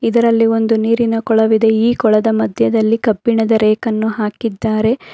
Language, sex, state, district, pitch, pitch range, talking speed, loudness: Kannada, female, Karnataka, Bangalore, 225 Hz, 220-230 Hz, 130 wpm, -14 LUFS